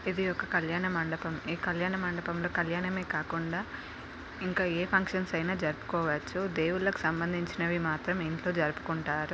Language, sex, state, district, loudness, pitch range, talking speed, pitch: Telugu, female, Telangana, Nalgonda, -32 LUFS, 165-185 Hz, 120 wpm, 175 Hz